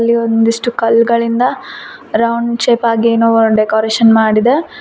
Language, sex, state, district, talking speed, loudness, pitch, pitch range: Kannada, female, Karnataka, Koppal, 125 wpm, -12 LUFS, 230 Hz, 225-235 Hz